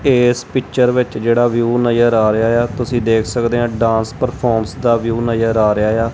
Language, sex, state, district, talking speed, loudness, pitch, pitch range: Punjabi, male, Punjab, Kapurthala, 175 wpm, -15 LUFS, 120 Hz, 115-120 Hz